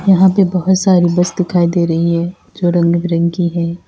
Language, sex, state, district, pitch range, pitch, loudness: Hindi, female, Uttar Pradesh, Lalitpur, 170-185 Hz, 175 Hz, -14 LUFS